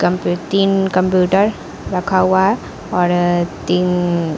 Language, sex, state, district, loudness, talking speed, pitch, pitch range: Hindi, female, Bihar, Patna, -16 LUFS, 110 wpm, 180 Hz, 175-190 Hz